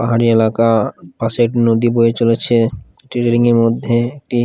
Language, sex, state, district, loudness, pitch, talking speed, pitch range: Bengali, male, Odisha, Khordha, -14 LUFS, 115 Hz, 160 wpm, 115-120 Hz